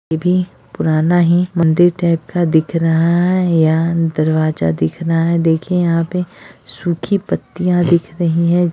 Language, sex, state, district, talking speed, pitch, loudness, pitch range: Hindi, female, Bihar, Jahanabad, 150 wpm, 170 Hz, -15 LUFS, 160-175 Hz